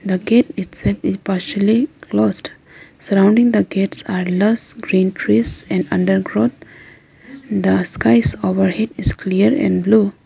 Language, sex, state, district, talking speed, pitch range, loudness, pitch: English, female, Arunachal Pradesh, Lower Dibang Valley, 130 wpm, 185-215 Hz, -17 LUFS, 195 Hz